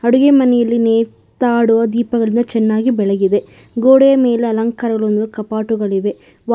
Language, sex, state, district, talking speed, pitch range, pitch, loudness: Kannada, female, Karnataka, Bangalore, 100 wpm, 220-240 Hz, 230 Hz, -14 LUFS